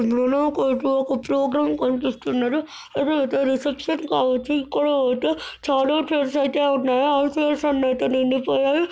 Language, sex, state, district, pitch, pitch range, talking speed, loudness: Telugu, male, Andhra Pradesh, Krishna, 275 Hz, 260-290 Hz, 135 wpm, -21 LUFS